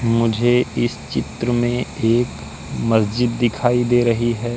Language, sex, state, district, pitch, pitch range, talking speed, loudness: Hindi, male, Madhya Pradesh, Katni, 120 Hz, 115-120 Hz, 130 wpm, -19 LUFS